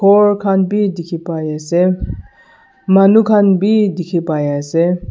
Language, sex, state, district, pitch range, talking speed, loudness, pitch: Nagamese, male, Nagaland, Dimapur, 170-205 Hz, 95 wpm, -14 LUFS, 185 Hz